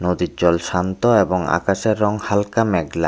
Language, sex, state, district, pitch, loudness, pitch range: Bengali, male, Tripura, West Tripura, 95 Hz, -19 LUFS, 90-105 Hz